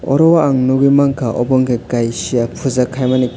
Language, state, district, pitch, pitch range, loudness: Kokborok, Tripura, West Tripura, 130 Hz, 120-135 Hz, -14 LUFS